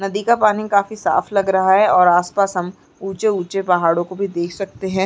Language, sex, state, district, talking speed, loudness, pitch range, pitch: Hindi, female, Uttarakhand, Uttarkashi, 215 wpm, -17 LUFS, 180-200 Hz, 195 Hz